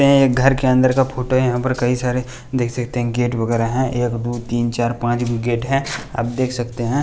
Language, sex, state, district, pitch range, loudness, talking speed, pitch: Hindi, male, Bihar, West Champaran, 120-130 Hz, -19 LUFS, 240 wpm, 125 Hz